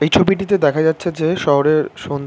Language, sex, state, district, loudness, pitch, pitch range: Bengali, male, West Bengal, Kolkata, -16 LUFS, 155 Hz, 150-175 Hz